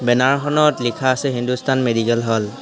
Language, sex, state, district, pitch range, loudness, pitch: Assamese, male, Assam, Hailakandi, 120-135 Hz, -18 LUFS, 125 Hz